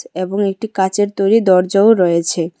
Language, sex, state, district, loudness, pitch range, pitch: Bengali, female, Tripura, West Tripura, -14 LUFS, 180-205 Hz, 195 Hz